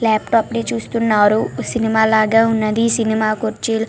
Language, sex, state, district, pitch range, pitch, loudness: Telugu, female, Telangana, Karimnagar, 220-230 Hz, 220 Hz, -16 LUFS